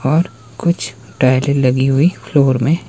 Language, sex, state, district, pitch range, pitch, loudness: Hindi, male, Himachal Pradesh, Shimla, 130-160 Hz, 140 Hz, -15 LUFS